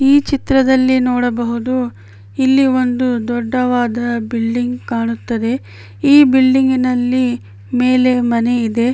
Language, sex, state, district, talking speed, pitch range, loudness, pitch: Kannada, female, Karnataka, Bijapur, 100 wpm, 235-255 Hz, -15 LUFS, 245 Hz